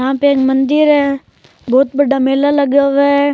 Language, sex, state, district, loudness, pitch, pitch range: Rajasthani, male, Rajasthan, Churu, -12 LUFS, 280 Hz, 270-285 Hz